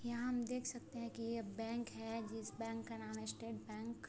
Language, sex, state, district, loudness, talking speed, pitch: Hindi, female, Bihar, Sitamarhi, -45 LUFS, 250 wpm, 225 Hz